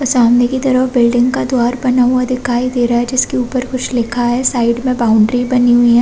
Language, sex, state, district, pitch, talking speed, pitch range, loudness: Hindi, female, Chhattisgarh, Korba, 245 Hz, 240 wpm, 240-255 Hz, -13 LUFS